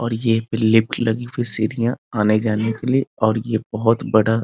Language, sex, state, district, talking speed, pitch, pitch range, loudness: Hindi, male, Bihar, Muzaffarpur, 190 wpm, 115 Hz, 110-120 Hz, -19 LUFS